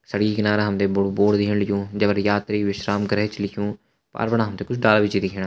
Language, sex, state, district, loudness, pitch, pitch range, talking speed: Hindi, male, Uttarakhand, Uttarkashi, -21 LUFS, 105 Hz, 100-105 Hz, 250 wpm